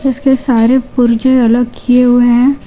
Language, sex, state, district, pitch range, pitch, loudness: Hindi, female, Jharkhand, Garhwa, 240-265 Hz, 250 Hz, -10 LUFS